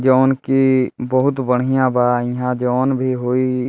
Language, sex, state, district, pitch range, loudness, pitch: Bhojpuri, male, Bihar, Muzaffarpur, 125-130 Hz, -17 LUFS, 130 Hz